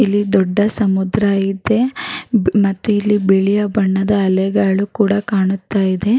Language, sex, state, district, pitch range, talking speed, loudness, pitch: Kannada, female, Karnataka, Raichur, 195-210 Hz, 115 wpm, -16 LUFS, 200 Hz